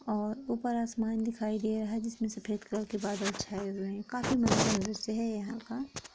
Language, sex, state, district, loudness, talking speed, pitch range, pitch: Hindi, female, Jharkhand, Sahebganj, -33 LUFS, 205 wpm, 210-230 Hz, 220 Hz